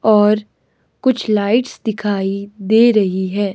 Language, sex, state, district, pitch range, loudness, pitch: Hindi, male, Himachal Pradesh, Shimla, 200-220 Hz, -16 LUFS, 210 Hz